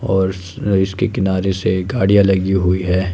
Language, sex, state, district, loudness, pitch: Hindi, male, Himachal Pradesh, Shimla, -17 LUFS, 95 Hz